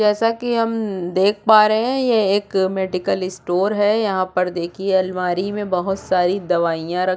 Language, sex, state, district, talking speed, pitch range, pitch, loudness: Hindi, female, Chhattisgarh, Korba, 185 wpm, 180-210 Hz, 190 Hz, -19 LUFS